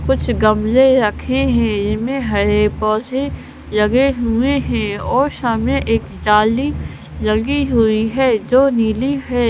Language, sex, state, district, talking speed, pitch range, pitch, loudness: Hindi, female, Punjab, Kapurthala, 125 wpm, 215-265 Hz, 235 Hz, -16 LUFS